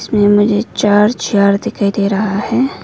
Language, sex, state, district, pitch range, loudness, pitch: Hindi, female, Arunachal Pradesh, Lower Dibang Valley, 200-215 Hz, -13 LUFS, 205 Hz